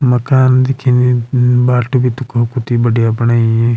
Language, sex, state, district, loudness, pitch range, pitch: Garhwali, male, Uttarakhand, Uttarkashi, -12 LUFS, 120-130 Hz, 125 Hz